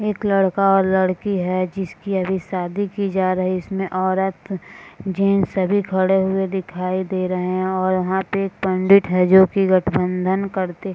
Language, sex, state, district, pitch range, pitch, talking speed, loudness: Hindi, female, Bihar, Madhepura, 185-195 Hz, 190 Hz, 170 wpm, -19 LUFS